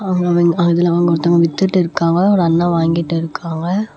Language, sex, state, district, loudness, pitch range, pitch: Tamil, female, Tamil Nadu, Namakkal, -15 LUFS, 165-180 Hz, 170 Hz